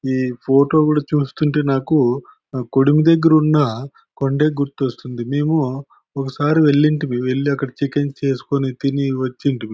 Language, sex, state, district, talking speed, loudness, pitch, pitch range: Telugu, male, Andhra Pradesh, Anantapur, 115 wpm, -18 LUFS, 140 Hz, 130-150 Hz